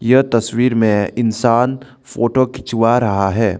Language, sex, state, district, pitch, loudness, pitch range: Hindi, male, Arunachal Pradesh, Lower Dibang Valley, 120 Hz, -15 LUFS, 110-125 Hz